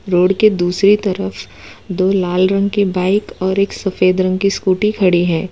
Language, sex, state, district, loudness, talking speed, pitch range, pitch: Hindi, female, Gujarat, Valsad, -15 LUFS, 185 wpm, 180-195 Hz, 185 Hz